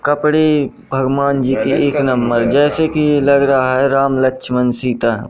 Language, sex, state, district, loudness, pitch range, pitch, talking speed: Hindi, male, Madhya Pradesh, Katni, -14 LUFS, 130-145 Hz, 135 Hz, 160 wpm